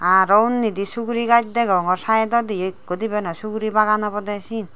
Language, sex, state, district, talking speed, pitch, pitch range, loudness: Chakma, female, Tripura, Dhalai, 175 wpm, 215 Hz, 190-225 Hz, -20 LUFS